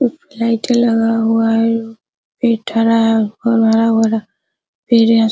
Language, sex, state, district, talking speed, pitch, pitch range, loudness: Hindi, female, Bihar, Araria, 115 wpm, 225 Hz, 225-230 Hz, -14 LUFS